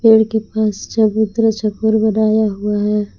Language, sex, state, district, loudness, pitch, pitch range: Hindi, female, Jharkhand, Palamu, -16 LUFS, 220 Hz, 210-220 Hz